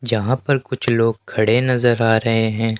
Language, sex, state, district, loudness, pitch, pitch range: Hindi, male, Rajasthan, Jaipur, -18 LUFS, 115 Hz, 110-125 Hz